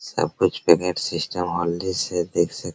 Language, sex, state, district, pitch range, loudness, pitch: Hindi, male, Bihar, Araria, 85-90 Hz, -22 LUFS, 90 Hz